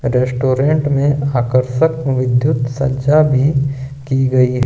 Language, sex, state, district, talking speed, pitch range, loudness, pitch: Hindi, male, Jharkhand, Ranchi, 115 wpm, 130-140 Hz, -15 LUFS, 135 Hz